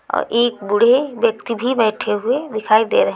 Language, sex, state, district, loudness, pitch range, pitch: Hindi, female, Chhattisgarh, Raipur, -17 LUFS, 215-245 Hz, 230 Hz